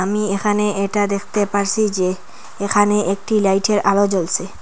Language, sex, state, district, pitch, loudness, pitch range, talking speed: Bengali, female, Assam, Hailakandi, 200 Hz, -18 LUFS, 195-210 Hz, 145 wpm